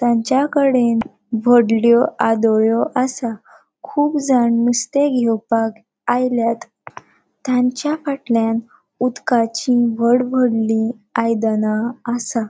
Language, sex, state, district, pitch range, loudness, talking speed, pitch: Konkani, female, Goa, North and South Goa, 225-250 Hz, -17 LUFS, 80 wpm, 235 Hz